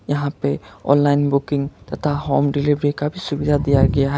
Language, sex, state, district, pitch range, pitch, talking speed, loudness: Hindi, male, Karnataka, Bangalore, 140-145 Hz, 145 Hz, 170 wpm, -19 LUFS